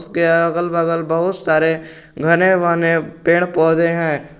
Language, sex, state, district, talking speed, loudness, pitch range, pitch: Hindi, male, Jharkhand, Garhwa, 135 wpm, -16 LUFS, 160-170 Hz, 165 Hz